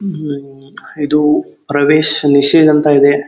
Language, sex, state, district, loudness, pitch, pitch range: Kannada, male, Karnataka, Dharwad, -12 LUFS, 150 Hz, 145-155 Hz